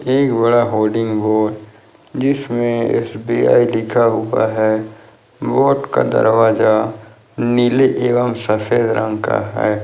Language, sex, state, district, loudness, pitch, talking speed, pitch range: Hindi, male, Bihar, Jahanabad, -16 LUFS, 115 Hz, 110 wpm, 110-120 Hz